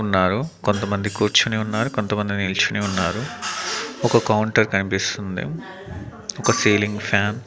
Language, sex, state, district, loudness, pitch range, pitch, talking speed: Telugu, male, Andhra Pradesh, Manyam, -21 LUFS, 100-110 Hz, 105 Hz, 115 wpm